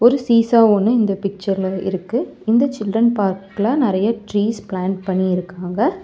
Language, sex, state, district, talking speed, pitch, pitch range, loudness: Tamil, male, Tamil Nadu, Chennai, 140 wpm, 205 Hz, 190-230 Hz, -18 LUFS